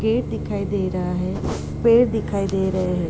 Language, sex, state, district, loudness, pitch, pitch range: Hindi, female, Uttar Pradesh, Deoria, -22 LUFS, 195 Hz, 185-220 Hz